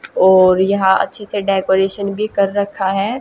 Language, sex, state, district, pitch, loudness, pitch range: Hindi, female, Haryana, Jhajjar, 200 Hz, -15 LUFS, 190-205 Hz